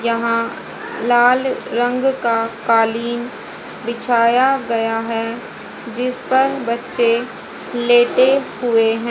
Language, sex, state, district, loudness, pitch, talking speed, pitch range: Hindi, female, Haryana, Jhajjar, -17 LUFS, 235 Hz, 90 wpm, 230-250 Hz